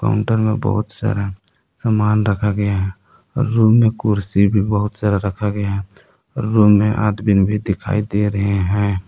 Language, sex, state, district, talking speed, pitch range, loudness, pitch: Hindi, male, Jharkhand, Palamu, 170 wpm, 100-110 Hz, -17 LUFS, 105 Hz